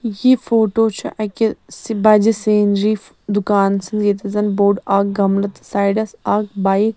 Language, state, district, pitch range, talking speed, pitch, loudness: Kashmiri, Punjab, Kapurthala, 200-220 Hz, 140 wpm, 210 Hz, -17 LUFS